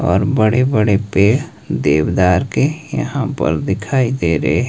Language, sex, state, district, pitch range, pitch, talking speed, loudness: Hindi, male, Himachal Pradesh, Shimla, 95-140 Hz, 115 Hz, 155 wpm, -16 LUFS